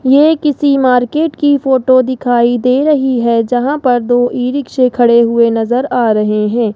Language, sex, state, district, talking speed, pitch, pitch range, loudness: Hindi, male, Rajasthan, Jaipur, 175 wpm, 250 Hz, 235-270 Hz, -12 LUFS